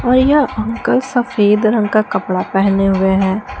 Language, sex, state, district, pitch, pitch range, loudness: Hindi, female, Jharkhand, Palamu, 215 Hz, 195-245 Hz, -14 LUFS